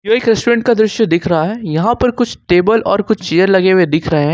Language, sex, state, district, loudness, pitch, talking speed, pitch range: Hindi, male, Jharkhand, Ranchi, -13 LUFS, 205 Hz, 260 wpm, 175-225 Hz